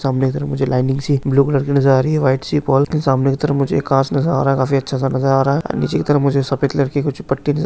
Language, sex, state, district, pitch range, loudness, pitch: Garhwali, male, Uttarakhand, Tehri Garhwal, 135-140 Hz, -17 LUFS, 140 Hz